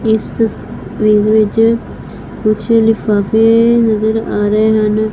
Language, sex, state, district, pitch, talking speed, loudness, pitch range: Punjabi, female, Punjab, Fazilka, 220 Hz, 105 wpm, -12 LUFS, 215-225 Hz